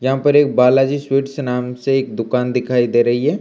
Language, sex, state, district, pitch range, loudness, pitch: Hindi, male, Bihar, Kaimur, 125-135 Hz, -16 LUFS, 125 Hz